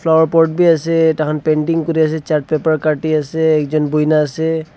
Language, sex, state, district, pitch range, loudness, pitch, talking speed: Nagamese, male, Nagaland, Dimapur, 155-160 Hz, -15 LUFS, 160 Hz, 200 wpm